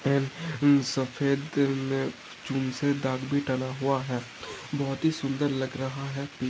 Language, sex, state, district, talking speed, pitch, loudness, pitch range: Hindi, male, Maharashtra, Pune, 130 wpm, 135 Hz, -28 LUFS, 130-140 Hz